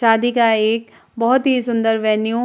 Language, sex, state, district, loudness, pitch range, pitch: Hindi, female, Uttar Pradesh, Jalaun, -17 LUFS, 225-240 Hz, 230 Hz